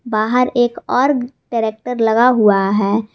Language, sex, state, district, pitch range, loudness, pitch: Hindi, female, Jharkhand, Garhwa, 215-250 Hz, -16 LUFS, 230 Hz